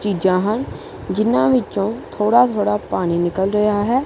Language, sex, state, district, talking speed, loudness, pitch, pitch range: Punjabi, male, Punjab, Kapurthala, 145 wpm, -18 LUFS, 205 Hz, 185-215 Hz